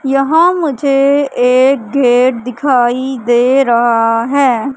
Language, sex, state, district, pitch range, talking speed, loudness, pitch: Hindi, female, Madhya Pradesh, Katni, 245-275 Hz, 100 wpm, -11 LUFS, 260 Hz